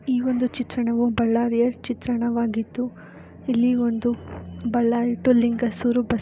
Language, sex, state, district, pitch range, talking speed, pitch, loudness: Kannada, female, Karnataka, Bellary, 235-245 Hz, 105 wpm, 240 Hz, -23 LUFS